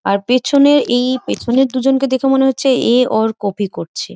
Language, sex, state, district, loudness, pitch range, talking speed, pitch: Bengali, female, West Bengal, Jhargram, -14 LUFS, 230-270 Hz, 175 wpm, 255 Hz